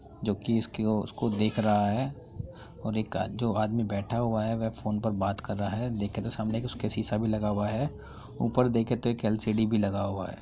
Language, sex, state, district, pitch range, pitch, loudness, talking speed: Hindi, male, Uttar Pradesh, Muzaffarnagar, 105-115 Hz, 110 Hz, -29 LUFS, 235 wpm